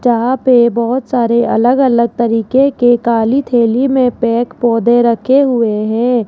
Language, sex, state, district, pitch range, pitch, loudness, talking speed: Hindi, female, Rajasthan, Jaipur, 235-255 Hz, 240 Hz, -12 LUFS, 155 wpm